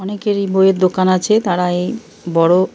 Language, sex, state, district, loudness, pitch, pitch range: Bengali, male, Jharkhand, Jamtara, -15 LUFS, 190 Hz, 180-205 Hz